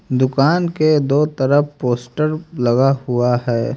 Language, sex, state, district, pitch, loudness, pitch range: Hindi, male, Haryana, Jhajjar, 135 Hz, -17 LUFS, 125-155 Hz